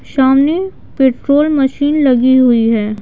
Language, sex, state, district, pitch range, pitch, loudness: Hindi, female, Bihar, Patna, 250-290 Hz, 265 Hz, -12 LUFS